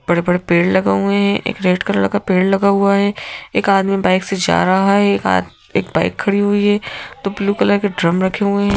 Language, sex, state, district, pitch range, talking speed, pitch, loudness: Hindi, female, Madhya Pradesh, Bhopal, 185-200 Hz, 240 wpm, 200 Hz, -16 LUFS